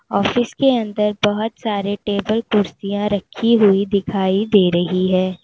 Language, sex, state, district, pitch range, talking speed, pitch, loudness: Hindi, female, Uttar Pradesh, Lalitpur, 195-215 Hz, 145 wpm, 205 Hz, -18 LUFS